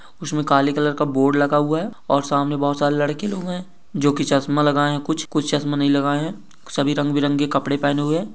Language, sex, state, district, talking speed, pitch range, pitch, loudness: Hindi, male, Maharashtra, Dhule, 220 wpm, 145-150 Hz, 145 Hz, -20 LUFS